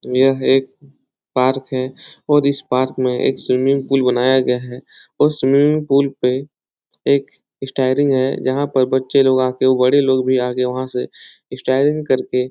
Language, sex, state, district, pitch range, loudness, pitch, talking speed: Hindi, male, Bihar, Jahanabad, 130-140 Hz, -17 LUFS, 130 Hz, 170 wpm